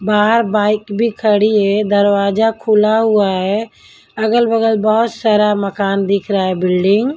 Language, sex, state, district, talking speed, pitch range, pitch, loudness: Hindi, female, Delhi, New Delhi, 150 wpm, 200-220 Hz, 210 Hz, -14 LUFS